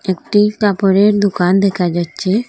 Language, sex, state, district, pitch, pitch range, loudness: Bengali, female, Assam, Hailakandi, 200 Hz, 185-205 Hz, -14 LUFS